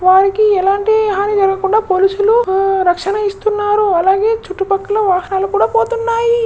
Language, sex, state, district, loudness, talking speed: Telugu, male, Telangana, Karimnagar, -14 LUFS, 110 wpm